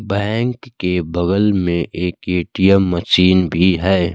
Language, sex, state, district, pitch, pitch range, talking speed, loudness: Hindi, male, Bihar, Kaimur, 90 Hz, 90-100 Hz, 130 wpm, -16 LUFS